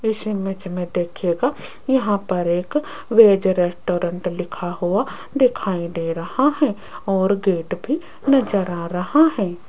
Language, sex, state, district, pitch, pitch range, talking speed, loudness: Hindi, female, Rajasthan, Jaipur, 195 Hz, 175-245 Hz, 135 wpm, -20 LUFS